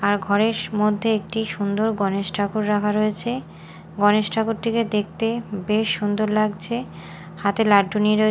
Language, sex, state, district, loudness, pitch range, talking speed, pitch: Bengali, female, Odisha, Malkangiri, -22 LUFS, 205-220 Hz, 145 wpm, 210 Hz